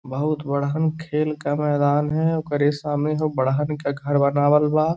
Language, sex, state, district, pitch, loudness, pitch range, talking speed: Bhojpuri, male, Uttar Pradesh, Gorakhpur, 150 Hz, -22 LUFS, 145-155 Hz, 170 wpm